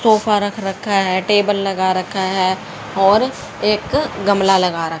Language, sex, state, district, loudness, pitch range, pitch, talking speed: Hindi, female, Haryana, Rohtak, -17 LUFS, 185-205 Hz, 195 Hz, 155 wpm